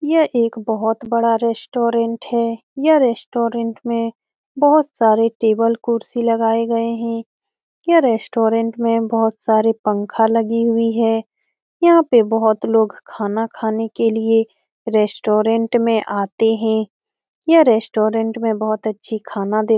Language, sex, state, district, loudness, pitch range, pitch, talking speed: Hindi, female, Bihar, Saran, -17 LUFS, 220-235 Hz, 230 Hz, 135 wpm